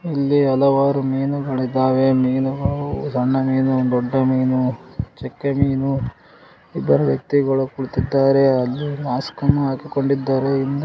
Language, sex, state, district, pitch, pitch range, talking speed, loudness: Kannada, male, Karnataka, Gulbarga, 135 Hz, 130-140 Hz, 95 wpm, -19 LUFS